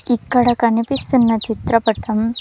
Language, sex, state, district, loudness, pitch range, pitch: Telugu, female, Andhra Pradesh, Sri Satya Sai, -17 LUFS, 225-245 Hz, 235 Hz